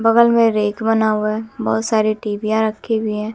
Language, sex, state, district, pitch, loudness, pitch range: Hindi, female, Bihar, West Champaran, 220 Hz, -17 LUFS, 215-225 Hz